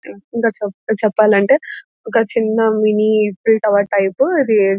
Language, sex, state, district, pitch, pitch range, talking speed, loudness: Telugu, female, Telangana, Nalgonda, 215 Hz, 205-230 Hz, 140 wpm, -15 LUFS